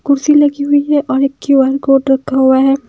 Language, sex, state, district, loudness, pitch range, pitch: Hindi, female, Himachal Pradesh, Shimla, -12 LUFS, 270-285 Hz, 275 Hz